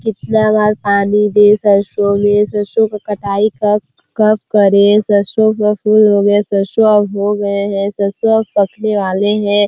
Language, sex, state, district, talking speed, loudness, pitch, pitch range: Hindi, female, Chhattisgarh, Korba, 175 wpm, -13 LUFS, 205 Hz, 200-215 Hz